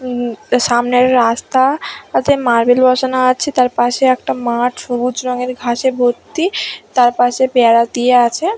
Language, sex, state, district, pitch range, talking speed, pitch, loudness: Bengali, female, West Bengal, Dakshin Dinajpur, 240-255 Hz, 125 wpm, 250 Hz, -14 LUFS